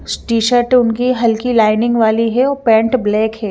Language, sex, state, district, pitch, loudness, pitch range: Hindi, female, Chandigarh, Chandigarh, 230 Hz, -14 LUFS, 220-245 Hz